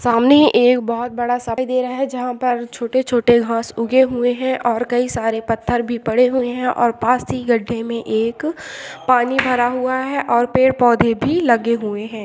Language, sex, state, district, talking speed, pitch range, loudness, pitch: Hindi, female, Bihar, Jamui, 195 wpm, 235-255 Hz, -17 LUFS, 245 Hz